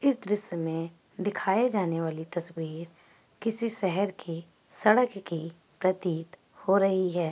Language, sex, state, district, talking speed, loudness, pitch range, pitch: Hindi, female, Bihar, Gaya, 130 wpm, -29 LUFS, 165-205 Hz, 180 Hz